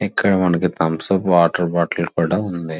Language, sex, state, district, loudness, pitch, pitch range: Telugu, male, Andhra Pradesh, Srikakulam, -18 LUFS, 85 Hz, 85-95 Hz